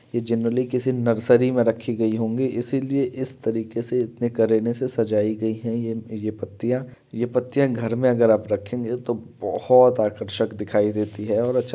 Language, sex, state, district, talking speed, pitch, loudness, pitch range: Hindi, male, Uttar Pradesh, Varanasi, 195 wpm, 115 Hz, -22 LUFS, 110-125 Hz